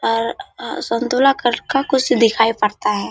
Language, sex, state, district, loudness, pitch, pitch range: Hindi, female, Bihar, Kishanganj, -17 LUFS, 230 Hz, 225-260 Hz